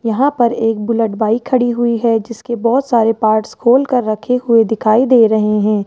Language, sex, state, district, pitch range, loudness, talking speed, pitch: Hindi, male, Rajasthan, Jaipur, 220-240 Hz, -14 LUFS, 205 wpm, 230 Hz